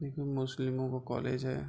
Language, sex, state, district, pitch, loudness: Hindi, male, Bihar, Bhagalpur, 130 Hz, -35 LUFS